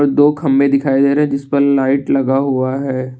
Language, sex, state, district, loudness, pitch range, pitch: Hindi, male, Assam, Kamrup Metropolitan, -14 LUFS, 135-140 Hz, 140 Hz